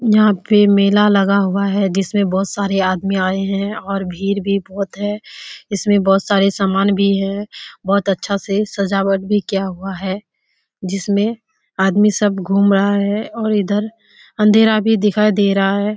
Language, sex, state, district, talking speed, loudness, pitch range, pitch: Hindi, female, Bihar, Kishanganj, 170 wpm, -16 LUFS, 195-210 Hz, 200 Hz